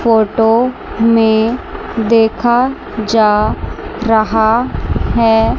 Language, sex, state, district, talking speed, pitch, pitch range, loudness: Hindi, female, Chandigarh, Chandigarh, 65 wpm, 225 Hz, 220-230 Hz, -13 LUFS